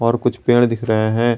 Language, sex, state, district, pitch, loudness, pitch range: Hindi, male, Jharkhand, Garhwa, 120 Hz, -17 LUFS, 115-120 Hz